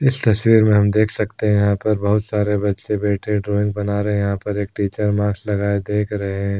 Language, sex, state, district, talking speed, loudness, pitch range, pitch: Hindi, male, Bihar, Darbhanga, 235 wpm, -19 LUFS, 100-105 Hz, 105 Hz